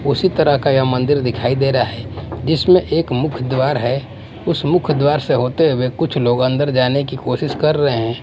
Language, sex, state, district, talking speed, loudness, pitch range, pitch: Hindi, male, Maharashtra, Mumbai Suburban, 210 wpm, -16 LUFS, 125-150 Hz, 135 Hz